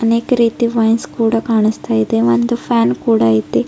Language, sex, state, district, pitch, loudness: Kannada, female, Karnataka, Bidar, 225 Hz, -14 LUFS